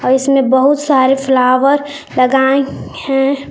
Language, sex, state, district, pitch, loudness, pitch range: Hindi, female, Jharkhand, Palamu, 270 Hz, -12 LUFS, 260-280 Hz